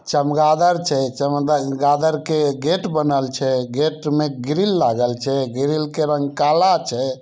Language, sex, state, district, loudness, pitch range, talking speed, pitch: Maithili, male, Bihar, Samastipur, -19 LUFS, 135-155 Hz, 140 wpm, 145 Hz